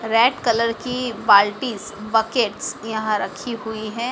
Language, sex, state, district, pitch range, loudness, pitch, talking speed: Hindi, female, Madhya Pradesh, Dhar, 215-235 Hz, -20 LUFS, 225 Hz, 130 wpm